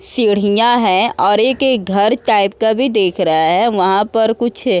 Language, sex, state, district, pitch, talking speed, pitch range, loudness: Hindi, female, Uttar Pradesh, Muzaffarnagar, 220 Hz, 185 wpm, 200-240 Hz, -14 LUFS